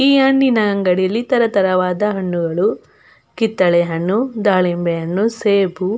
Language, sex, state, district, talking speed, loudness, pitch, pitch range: Kannada, female, Karnataka, Belgaum, 100 wpm, -16 LUFS, 195 Hz, 180-225 Hz